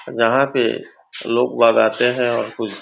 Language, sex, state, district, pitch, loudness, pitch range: Hindi, male, Chhattisgarh, Raigarh, 120 Hz, -17 LUFS, 115-125 Hz